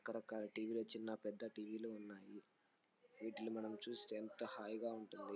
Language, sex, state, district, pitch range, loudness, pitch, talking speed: Telugu, male, Andhra Pradesh, Anantapur, 105-115 Hz, -49 LUFS, 110 Hz, 165 wpm